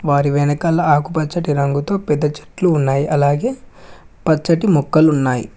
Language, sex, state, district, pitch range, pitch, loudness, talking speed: Telugu, male, Telangana, Mahabubabad, 145-165 Hz, 150 Hz, -16 LUFS, 110 wpm